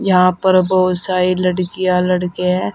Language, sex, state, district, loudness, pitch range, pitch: Hindi, female, Uttar Pradesh, Saharanpur, -15 LUFS, 180-185 Hz, 185 Hz